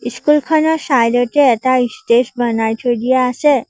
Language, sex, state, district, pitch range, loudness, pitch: Assamese, female, Assam, Sonitpur, 240-290 Hz, -14 LUFS, 250 Hz